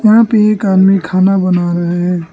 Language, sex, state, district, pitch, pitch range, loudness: Hindi, male, Arunachal Pradesh, Lower Dibang Valley, 190 Hz, 175-210 Hz, -11 LUFS